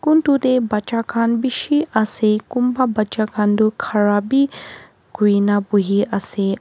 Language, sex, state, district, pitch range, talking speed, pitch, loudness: Nagamese, female, Nagaland, Kohima, 205-250 Hz, 155 wpm, 215 Hz, -18 LUFS